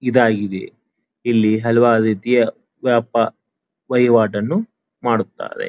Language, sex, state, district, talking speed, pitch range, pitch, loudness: Kannada, male, Karnataka, Dharwad, 75 wpm, 110-125 Hz, 115 Hz, -18 LUFS